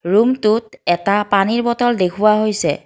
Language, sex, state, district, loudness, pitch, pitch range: Assamese, female, Assam, Kamrup Metropolitan, -16 LUFS, 215 Hz, 195-230 Hz